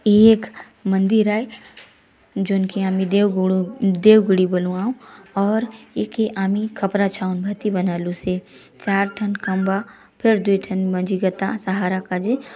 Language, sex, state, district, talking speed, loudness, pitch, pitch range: Halbi, female, Chhattisgarh, Bastar, 150 wpm, -20 LUFS, 195 Hz, 190-210 Hz